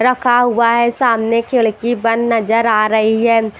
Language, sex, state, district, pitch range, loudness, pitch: Hindi, female, Chhattisgarh, Raipur, 225-240 Hz, -14 LUFS, 230 Hz